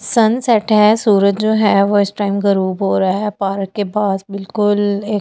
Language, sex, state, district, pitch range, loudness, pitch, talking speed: Hindi, female, Delhi, New Delhi, 200-210 Hz, -15 LUFS, 205 Hz, 205 wpm